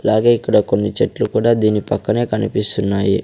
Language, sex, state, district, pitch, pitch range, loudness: Telugu, male, Andhra Pradesh, Sri Satya Sai, 110 Hz, 105-115 Hz, -16 LUFS